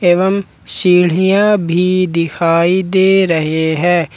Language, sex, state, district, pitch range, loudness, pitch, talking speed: Hindi, male, Jharkhand, Ranchi, 165-190 Hz, -13 LUFS, 180 Hz, 100 wpm